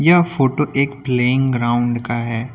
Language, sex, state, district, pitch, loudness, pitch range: Hindi, male, Uttar Pradesh, Lucknow, 130 Hz, -18 LUFS, 120-140 Hz